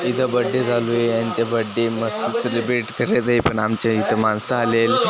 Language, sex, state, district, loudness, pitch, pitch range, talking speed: Marathi, male, Maharashtra, Washim, -20 LUFS, 115 Hz, 115-120 Hz, 175 wpm